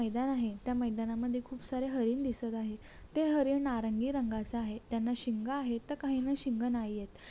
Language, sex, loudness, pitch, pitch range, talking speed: Marathi, female, -34 LUFS, 245 Hz, 230-265 Hz, 180 wpm